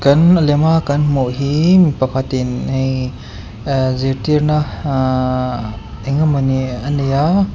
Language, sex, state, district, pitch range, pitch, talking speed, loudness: Mizo, male, Mizoram, Aizawl, 130-150 Hz, 135 Hz, 120 wpm, -16 LUFS